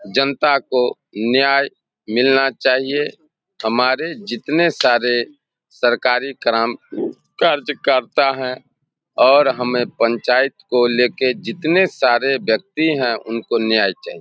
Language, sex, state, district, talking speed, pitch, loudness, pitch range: Hindi, male, Bihar, Samastipur, 100 wpm, 125 Hz, -17 LUFS, 120-140 Hz